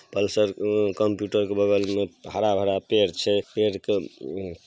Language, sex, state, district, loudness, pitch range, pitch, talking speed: Maithili, male, Bihar, Samastipur, -24 LUFS, 100-105 Hz, 100 Hz, 130 wpm